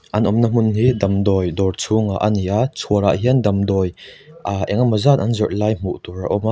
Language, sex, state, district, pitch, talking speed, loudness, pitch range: Mizo, male, Mizoram, Aizawl, 105 Hz, 220 wpm, -18 LUFS, 100-115 Hz